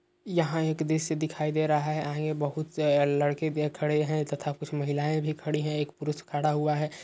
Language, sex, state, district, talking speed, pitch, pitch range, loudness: Hindi, male, Uttar Pradesh, Hamirpur, 195 wpm, 150 Hz, 150-155 Hz, -29 LUFS